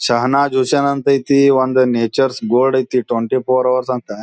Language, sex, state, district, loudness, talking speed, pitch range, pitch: Kannada, male, Karnataka, Bijapur, -15 LUFS, 170 wpm, 125-135 Hz, 130 Hz